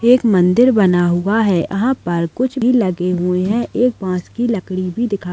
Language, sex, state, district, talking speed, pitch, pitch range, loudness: Hindi, female, Chhattisgarh, Kabirdham, 215 wpm, 200 Hz, 180-240 Hz, -16 LUFS